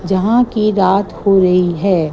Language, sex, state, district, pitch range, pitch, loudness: Hindi, female, Gujarat, Gandhinagar, 180-205 Hz, 190 Hz, -13 LUFS